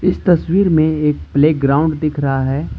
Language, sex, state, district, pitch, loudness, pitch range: Hindi, male, Jharkhand, Ranchi, 155 Hz, -15 LUFS, 140-165 Hz